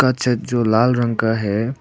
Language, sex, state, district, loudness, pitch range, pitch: Hindi, male, Arunachal Pradesh, Papum Pare, -18 LUFS, 110-125 Hz, 120 Hz